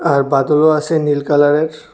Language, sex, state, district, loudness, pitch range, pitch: Bengali, male, Tripura, West Tripura, -14 LUFS, 145-155 Hz, 150 Hz